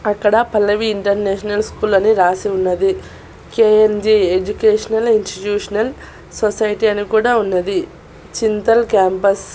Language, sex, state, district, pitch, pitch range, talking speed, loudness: Telugu, female, Andhra Pradesh, Annamaya, 210 Hz, 195-220 Hz, 105 wpm, -16 LUFS